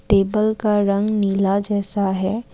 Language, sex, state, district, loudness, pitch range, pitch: Hindi, female, Assam, Kamrup Metropolitan, -19 LUFS, 195-210 Hz, 200 Hz